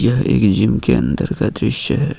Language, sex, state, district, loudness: Hindi, male, Jharkhand, Ranchi, -16 LUFS